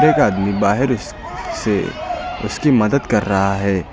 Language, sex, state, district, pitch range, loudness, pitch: Hindi, male, Uttar Pradesh, Lucknow, 95-105 Hz, -18 LUFS, 100 Hz